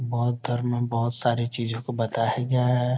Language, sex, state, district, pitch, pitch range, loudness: Hindi, male, Bihar, Gopalganj, 120 Hz, 115-125 Hz, -26 LUFS